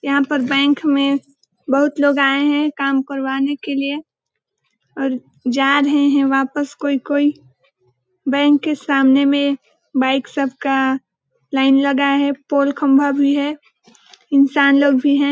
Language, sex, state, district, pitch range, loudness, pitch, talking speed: Hindi, female, Chhattisgarh, Balrampur, 270-285 Hz, -17 LUFS, 280 Hz, 145 wpm